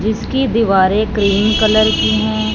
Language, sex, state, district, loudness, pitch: Hindi, male, Punjab, Fazilka, -14 LUFS, 210 Hz